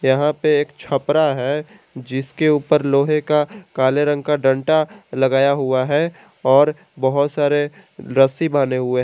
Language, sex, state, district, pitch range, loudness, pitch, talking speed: Hindi, male, Jharkhand, Garhwa, 135-150 Hz, -18 LUFS, 145 Hz, 145 wpm